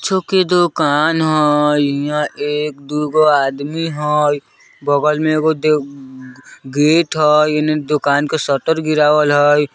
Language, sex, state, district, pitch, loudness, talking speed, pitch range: Bajjika, male, Bihar, Vaishali, 150 Hz, -15 LUFS, 135 wpm, 145-155 Hz